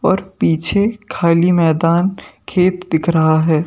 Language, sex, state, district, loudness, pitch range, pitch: Hindi, male, Madhya Pradesh, Bhopal, -15 LUFS, 160-180 Hz, 170 Hz